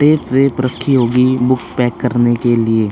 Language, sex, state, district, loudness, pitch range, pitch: Hindi, male, Chhattisgarh, Korba, -14 LUFS, 120-130 Hz, 125 Hz